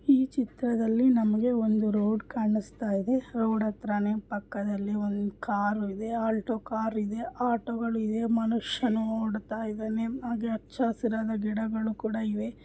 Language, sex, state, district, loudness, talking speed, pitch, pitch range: Kannada, female, Karnataka, Bijapur, -29 LUFS, 130 wpm, 220 Hz, 215-230 Hz